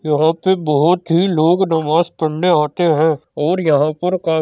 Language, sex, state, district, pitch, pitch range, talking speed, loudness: Hindi, male, Uttar Pradesh, Jyotiba Phule Nagar, 160 Hz, 155-175 Hz, 190 wpm, -16 LUFS